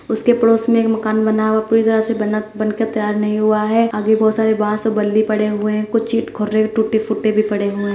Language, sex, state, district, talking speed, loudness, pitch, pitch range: Hindi, male, Bihar, Purnia, 265 wpm, -16 LUFS, 215 Hz, 215-220 Hz